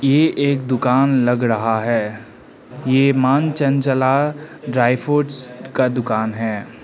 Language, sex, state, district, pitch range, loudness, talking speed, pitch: Hindi, male, Arunachal Pradesh, Lower Dibang Valley, 120-140 Hz, -18 LUFS, 125 wpm, 130 Hz